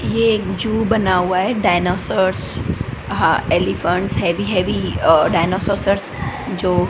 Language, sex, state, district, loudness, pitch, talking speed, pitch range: Hindi, female, Gujarat, Gandhinagar, -18 LUFS, 190 Hz, 120 wpm, 185-205 Hz